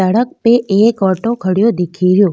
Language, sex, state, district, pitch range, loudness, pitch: Rajasthani, female, Rajasthan, Nagaur, 185-230 Hz, -13 LUFS, 200 Hz